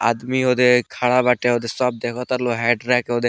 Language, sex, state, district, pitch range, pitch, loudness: Bhojpuri, male, Bihar, Muzaffarpur, 120-125 Hz, 125 Hz, -19 LUFS